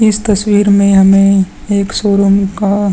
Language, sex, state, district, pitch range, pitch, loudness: Hindi, male, Bihar, Vaishali, 195-205 Hz, 200 Hz, -10 LUFS